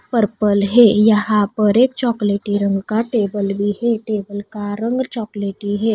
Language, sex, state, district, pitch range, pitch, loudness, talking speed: Hindi, female, Odisha, Nuapada, 205-225 Hz, 210 Hz, -17 LUFS, 160 wpm